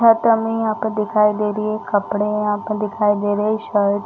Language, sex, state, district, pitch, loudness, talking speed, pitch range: Hindi, female, Chhattisgarh, Bastar, 210 Hz, -19 LUFS, 205 wpm, 210-220 Hz